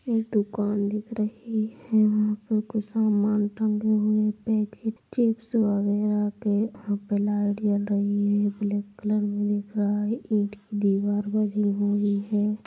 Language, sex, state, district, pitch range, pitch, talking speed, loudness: Hindi, female, Bihar, Saharsa, 205-215 Hz, 210 Hz, 125 wpm, -26 LUFS